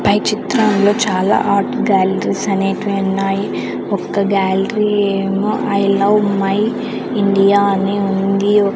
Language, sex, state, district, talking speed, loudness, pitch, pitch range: Telugu, female, Andhra Pradesh, Sri Satya Sai, 110 wpm, -15 LUFS, 200 Hz, 195-205 Hz